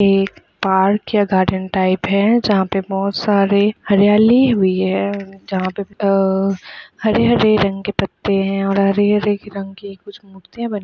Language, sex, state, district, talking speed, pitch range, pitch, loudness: Hindi, female, Chhattisgarh, Raigarh, 165 wpm, 195-205 Hz, 200 Hz, -16 LUFS